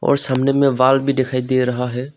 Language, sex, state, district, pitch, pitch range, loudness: Hindi, male, Arunachal Pradesh, Longding, 130 Hz, 125-135 Hz, -17 LUFS